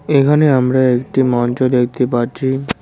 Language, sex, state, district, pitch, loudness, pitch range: Bengali, male, West Bengal, Cooch Behar, 130 Hz, -15 LUFS, 125-135 Hz